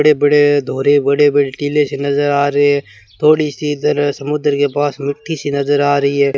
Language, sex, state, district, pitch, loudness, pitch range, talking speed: Hindi, male, Rajasthan, Bikaner, 145 Hz, -14 LUFS, 140-145 Hz, 195 wpm